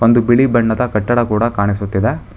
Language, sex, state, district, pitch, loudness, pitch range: Kannada, male, Karnataka, Bangalore, 115 Hz, -15 LUFS, 105-120 Hz